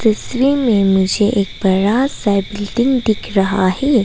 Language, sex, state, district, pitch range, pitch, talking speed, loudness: Hindi, female, Arunachal Pradesh, Papum Pare, 195-245 Hz, 210 Hz, 120 wpm, -15 LUFS